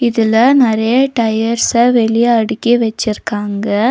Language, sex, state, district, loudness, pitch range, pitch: Tamil, female, Tamil Nadu, Nilgiris, -13 LUFS, 220-240 Hz, 230 Hz